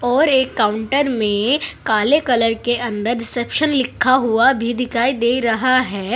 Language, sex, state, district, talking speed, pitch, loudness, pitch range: Hindi, female, Uttar Pradesh, Saharanpur, 155 wpm, 240 Hz, -16 LUFS, 230-260 Hz